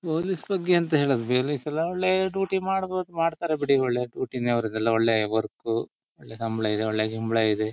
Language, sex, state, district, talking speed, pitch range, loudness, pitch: Kannada, male, Karnataka, Shimoga, 185 wpm, 115-170 Hz, -25 LUFS, 130 Hz